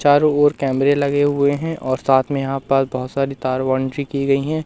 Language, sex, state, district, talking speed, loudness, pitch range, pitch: Hindi, male, Madhya Pradesh, Katni, 220 wpm, -18 LUFS, 135-145 Hz, 140 Hz